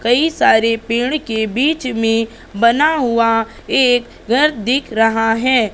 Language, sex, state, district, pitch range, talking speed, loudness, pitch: Hindi, female, Madhya Pradesh, Katni, 225-255 Hz, 135 wpm, -15 LUFS, 235 Hz